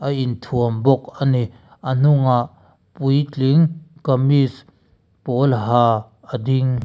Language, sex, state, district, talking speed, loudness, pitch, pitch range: Mizo, male, Mizoram, Aizawl, 115 wpm, -19 LUFS, 130 Hz, 120-140 Hz